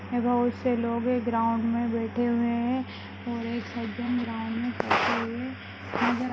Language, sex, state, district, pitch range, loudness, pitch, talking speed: Hindi, female, Rajasthan, Nagaur, 230-245 Hz, -28 LUFS, 235 Hz, 180 wpm